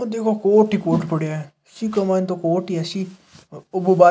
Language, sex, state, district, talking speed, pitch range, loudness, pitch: Hindi, male, Rajasthan, Nagaur, 250 wpm, 165-200 Hz, -20 LUFS, 185 Hz